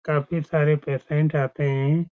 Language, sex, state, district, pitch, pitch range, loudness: Hindi, male, Bihar, Saran, 150 Hz, 140-160 Hz, -23 LUFS